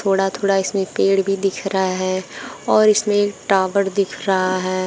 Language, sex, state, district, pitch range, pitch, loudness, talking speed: Hindi, female, Uttar Pradesh, Shamli, 185-200 Hz, 195 Hz, -18 LUFS, 185 wpm